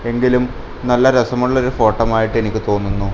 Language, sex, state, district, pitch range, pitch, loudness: Malayalam, male, Kerala, Kasaragod, 110-125 Hz, 120 Hz, -16 LUFS